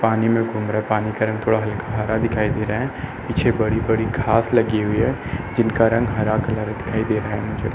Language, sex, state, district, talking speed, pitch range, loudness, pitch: Hindi, male, Uttar Pradesh, Etah, 230 wpm, 110-115 Hz, -21 LUFS, 110 Hz